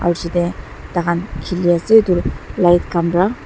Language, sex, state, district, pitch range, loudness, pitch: Nagamese, female, Nagaland, Dimapur, 170-180 Hz, -17 LUFS, 175 Hz